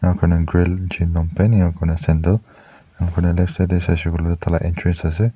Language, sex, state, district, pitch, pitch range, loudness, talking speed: Nagamese, male, Nagaland, Dimapur, 85 Hz, 85-90 Hz, -19 LUFS, 90 wpm